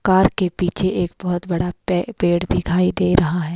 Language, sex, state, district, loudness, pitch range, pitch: Hindi, female, Himachal Pradesh, Shimla, -19 LUFS, 175-185 Hz, 180 Hz